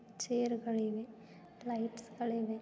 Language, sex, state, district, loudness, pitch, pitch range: Kannada, female, Karnataka, Dharwad, -38 LUFS, 230 Hz, 220-235 Hz